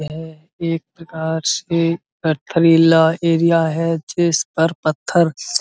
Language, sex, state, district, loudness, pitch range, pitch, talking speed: Hindi, male, Uttar Pradesh, Muzaffarnagar, -17 LUFS, 160-165 Hz, 165 Hz, 120 wpm